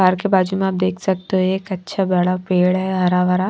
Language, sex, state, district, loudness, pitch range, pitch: Hindi, female, Maharashtra, Washim, -18 LUFS, 180-190 Hz, 185 Hz